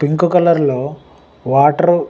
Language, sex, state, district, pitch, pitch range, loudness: Telugu, male, Telangana, Nalgonda, 150 Hz, 140-175 Hz, -14 LUFS